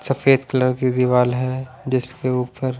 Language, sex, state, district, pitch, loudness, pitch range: Hindi, male, Punjab, Pathankot, 130 Hz, -20 LUFS, 125-130 Hz